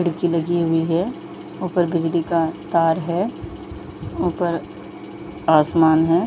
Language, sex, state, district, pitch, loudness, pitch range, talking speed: Hindi, female, Jharkhand, Jamtara, 170 Hz, -20 LUFS, 165-175 Hz, 115 wpm